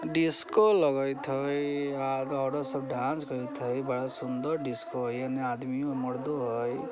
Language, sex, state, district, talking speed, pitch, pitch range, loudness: Maithili, female, Bihar, Vaishali, 155 wpm, 135 Hz, 130-145 Hz, -30 LUFS